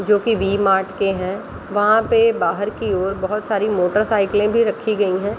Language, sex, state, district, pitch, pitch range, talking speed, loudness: Hindi, female, Bihar, Kishanganj, 205 Hz, 195-215 Hz, 200 wpm, -18 LUFS